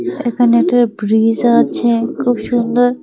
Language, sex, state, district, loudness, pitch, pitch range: Bengali, female, Tripura, West Tripura, -14 LUFS, 240 Hz, 230-245 Hz